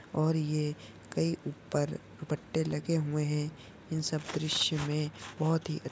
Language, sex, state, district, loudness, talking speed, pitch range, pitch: Hindi, male, Bihar, Saharsa, -33 LUFS, 150 wpm, 150-155 Hz, 150 Hz